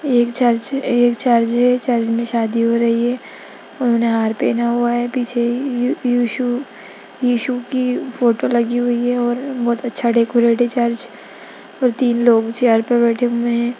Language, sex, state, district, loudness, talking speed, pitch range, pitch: Hindi, female, Bihar, Gaya, -17 LUFS, 165 wpm, 235-245 Hz, 240 Hz